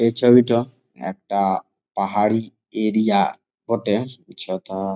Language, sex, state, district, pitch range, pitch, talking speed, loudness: Bengali, male, West Bengal, Jalpaiguri, 100-120 Hz, 110 Hz, 85 wpm, -20 LUFS